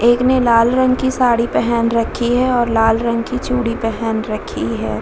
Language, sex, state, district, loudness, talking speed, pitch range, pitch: Hindi, female, Bihar, Vaishali, -16 LUFS, 205 wpm, 230-250 Hz, 235 Hz